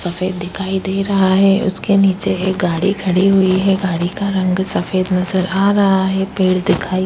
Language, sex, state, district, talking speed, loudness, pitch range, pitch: Hindi, female, Uttar Pradesh, Budaun, 195 wpm, -16 LUFS, 185-195 Hz, 190 Hz